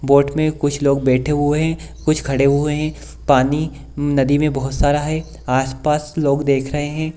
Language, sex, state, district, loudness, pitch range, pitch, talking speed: Hindi, male, Bihar, Kishanganj, -18 LUFS, 140-150 Hz, 145 Hz, 185 wpm